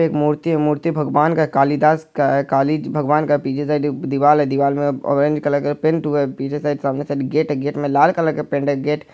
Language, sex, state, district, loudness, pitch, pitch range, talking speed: Hindi, male, Bihar, Araria, -18 LUFS, 145 Hz, 140-150 Hz, 275 wpm